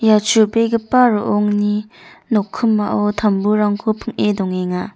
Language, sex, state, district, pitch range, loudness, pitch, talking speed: Garo, female, Meghalaya, North Garo Hills, 205-220 Hz, -17 LUFS, 210 Hz, 85 wpm